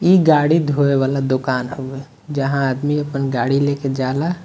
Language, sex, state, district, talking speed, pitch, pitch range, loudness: Bhojpuri, male, Bihar, Muzaffarpur, 160 wpm, 140 Hz, 135-145 Hz, -18 LUFS